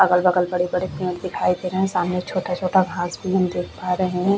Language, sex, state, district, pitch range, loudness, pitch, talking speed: Hindi, female, Chhattisgarh, Bastar, 180-185 Hz, -22 LUFS, 180 Hz, 300 wpm